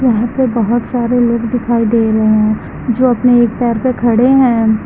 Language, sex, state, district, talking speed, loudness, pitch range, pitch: Hindi, female, Uttar Pradesh, Lucknow, 200 wpm, -12 LUFS, 230-245 Hz, 235 Hz